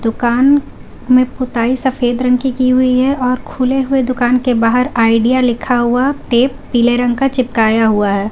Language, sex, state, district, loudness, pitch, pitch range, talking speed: Hindi, female, Jharkhand, Garhwa, -13 LUFS, 250 Hz, 240-255 Hz, 180 wpm